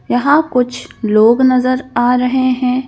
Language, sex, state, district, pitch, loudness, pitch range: Hindi, female, Madhya Pradesh, Bhopal, 250 Hz, -13 LUFS, 245-255 Hz